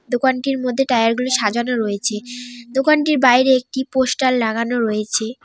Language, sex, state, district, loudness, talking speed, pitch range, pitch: Bengali, female, West Bengal, Cooch Behar, -18 LUFS, 120 wpm, 230-260 Hz, 250 Hz